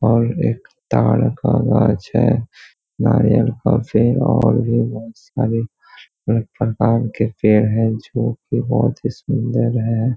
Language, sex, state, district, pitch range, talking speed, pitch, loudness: Hindi, male, Bihar, Jamui, 110-120 Hz, 150 wpm, 115 Hz, -17 LUFS